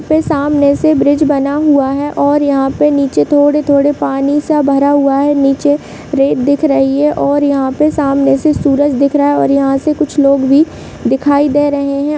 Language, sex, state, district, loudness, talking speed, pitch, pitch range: Hindi, female, Bihar, Purnia, -11 LUFS, 200 wpm, 285 Hz, 275-295 Hz